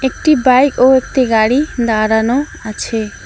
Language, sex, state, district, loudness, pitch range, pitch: Bengali, female, West Bengal, Alipurduar, -13 LUFS, 220-265 Hz, 255 Hz